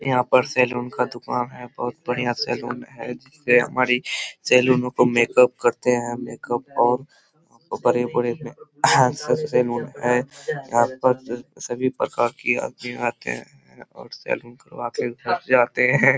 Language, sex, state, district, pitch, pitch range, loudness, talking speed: Hindi, male, Bihar, Kishanganj, 125 Hz, 120-125 Hz, -22 LUFS, 125 wpm